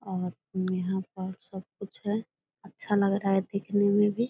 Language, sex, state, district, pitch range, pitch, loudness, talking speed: Hindi, female, Bihar, Purnia, 185-205 Hz, 195 Hz, -29 LUFS, 180 wpm